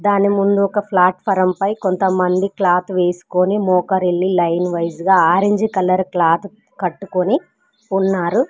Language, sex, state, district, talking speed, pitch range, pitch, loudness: Telugu, female, Telangana, Mahabubabad, 120 wpm, 180-200 Hz, 190 Hz, -17 LUFS